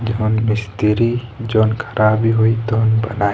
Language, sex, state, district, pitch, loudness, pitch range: Bhojpuri, male, Bihar, East Champaran, 110 Hz, -17 LUFS, 110-115 Hz